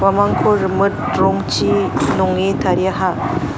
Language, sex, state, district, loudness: Garo, female, Meghalaya, North Garo Hills, -16 LUFS